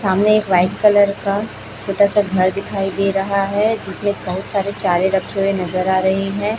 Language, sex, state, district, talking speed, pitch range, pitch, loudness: Hindi, female, Chhattisgarh, Raipur, 200 wpm, 190-205 Hz, 195 Hz, -17 LUFS